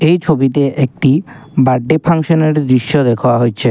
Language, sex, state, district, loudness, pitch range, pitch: Bengali, male, Assam, Kamrup Metropolitan, -13 LUFS, 130-155 Hz, 140 Hz